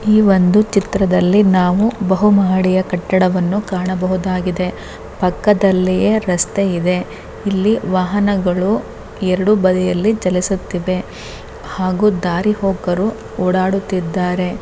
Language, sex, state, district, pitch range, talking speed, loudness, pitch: Kannada, female, Karnataka, Bellary, 180-200 Hz, 75 wpm, -16 LUFS, 185 Hz